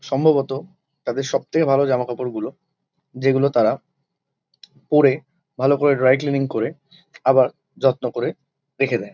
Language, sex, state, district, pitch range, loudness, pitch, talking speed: Bengali, male, West Bengal, Kolkata, 130-145 Hz, -20 LUFS, 135 Hz, 125 wpm